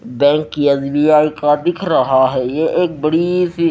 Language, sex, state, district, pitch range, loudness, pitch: Hindi, male, Haryana, Rohtak, 140-165 Hz, -15 LUFS, 150 Hz